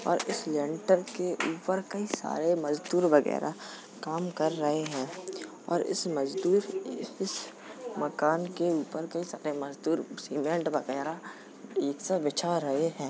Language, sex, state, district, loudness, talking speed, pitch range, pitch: Hindi, female, Uttar Pradesh, Jalaun, -31 LUFS, 135 wpm, 150-180 Hz, 160 Hz